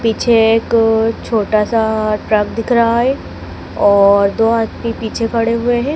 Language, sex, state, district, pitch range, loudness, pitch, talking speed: Hindi, female, Madhya Pradesh, Dhar, 215-230 Hz, -14 LUFS, 225 Hz, 150 wpm